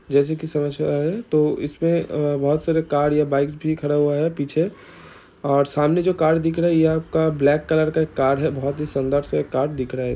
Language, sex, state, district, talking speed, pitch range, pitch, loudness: Hindi, male, Bihar, Saran, 190 wpm, 140-160 Hz, 150 Hz, -21 LUFS